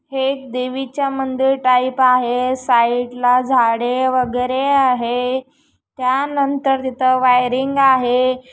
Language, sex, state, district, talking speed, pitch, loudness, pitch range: Marathi, female, Maharashtra, Chandrapur, 110 wpm, 255 Hz, -17 LUFS, 250-270 Hz